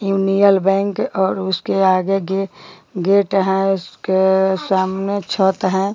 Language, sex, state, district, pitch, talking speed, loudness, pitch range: Hindi, female, Bihar, Bhagalpur, 195 Hz, 120 wpm, -17 LUFS, 190-195 Hz